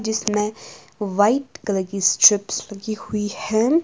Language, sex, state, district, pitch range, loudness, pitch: Hindi, female, Himachal Pradesh, Shimla, 205-220 Hz, -20 LUFS, 210 Hz